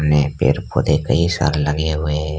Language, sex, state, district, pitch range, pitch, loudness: Hindi, male, Arunachal Pradesh, Lower Dibang Valley, 75-80 Hz, 75 Hz, -18 LUFS